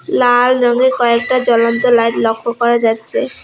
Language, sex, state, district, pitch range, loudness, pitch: Bengali, female, West Bengal, Alipurduar, 230-245 Hz, -13 LUFS, 240 Hz